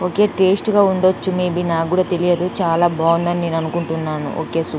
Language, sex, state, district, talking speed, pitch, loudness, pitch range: Telugu, female, Telangana, Nalgonda, 190 wpm, 175 Hz, -18 LUFS, 165-185 Hz